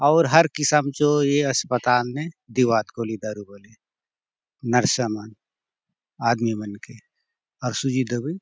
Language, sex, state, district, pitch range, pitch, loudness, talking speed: Halbi, male, Chhattisgarh, Bastar, 110-145 Hz, 125 Hz, -22 LUFS, 140 wpm